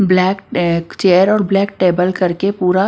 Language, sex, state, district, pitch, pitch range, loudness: Hindi, female, Maharashtra, Washim, 185 Hz, 180-195 Hz, -14 LUFS